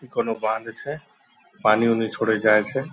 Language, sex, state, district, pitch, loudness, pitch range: Hindi, male, Bihar, Purnia, 110 Hz, -22 LUFS, 110-115 Hz